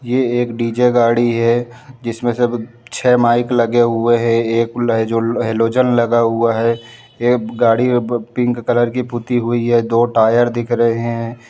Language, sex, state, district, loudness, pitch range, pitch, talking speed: Hindi, male, Chhattisgarh, Bilaspur, -16 LUFS, 115-120 Hz, 120 Hz, 175 wpm